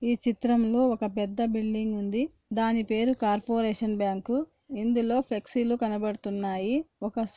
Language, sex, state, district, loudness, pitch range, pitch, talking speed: Telugu, female, Andhra Pradesh, Anantapur, -28 LUFS, 210-240 Hz, 225 Hz, 140 wpm